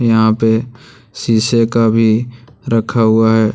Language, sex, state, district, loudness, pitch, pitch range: Hindi, male, Jharkhand, Deoghar, -13 LUFS, 115 Hz, 110-120 Hz